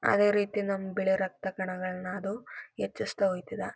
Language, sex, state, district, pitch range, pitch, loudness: Kannada, female, Karnataka, Mysore, 185-200 Hz, 195 Hz, -31 LUFS